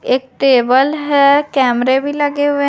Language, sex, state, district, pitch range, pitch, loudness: Hindi, female, Chhattisgarh, Raipur, 260-290 Hz, 280 Hz, -13 LUFS